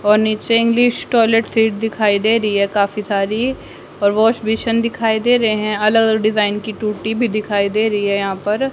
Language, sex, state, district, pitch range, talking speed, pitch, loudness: Hindi, female, Haryana, Jhajjar, 210-225 Hz, 205 wpm, 215 Hz, -16 LUFS